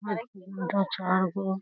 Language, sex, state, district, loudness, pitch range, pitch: Hindi, female, Bihar, Lakhisarai, -29 LUFS, 185-195 Hz, 190 Hz